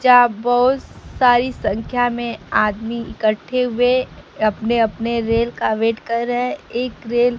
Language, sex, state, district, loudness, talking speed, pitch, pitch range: Hindi, female, Bihar, Kaimur, -19 LUFS, 145 wpm, 235 Hz, 225-245 Hz